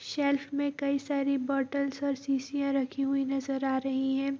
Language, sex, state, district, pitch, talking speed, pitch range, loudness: Hindi, female, Bihar, Vaishali, 275 Hz, 190 wpm, 270-280 Hz, -30 LUFS